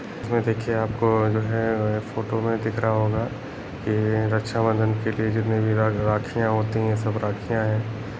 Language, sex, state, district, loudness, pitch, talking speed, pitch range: Hindi, male, Chhattisgarh, Raigarh, -24 LUFS, 110 Hz, 160 wpm, 110-115 Hz